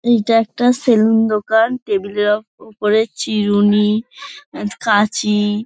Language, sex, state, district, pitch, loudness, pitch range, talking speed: Bengali, female, West Bengal, Dakshin Dinajpur, 215 Hz, -16 LUFS, 210-230 Hz, 105 wpm